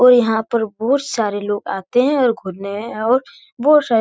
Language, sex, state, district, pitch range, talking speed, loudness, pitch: Hindi, male, Bihar, Jahanabad, 205-250 Hz, 195 wpm, -18 LUFS, 230 Hz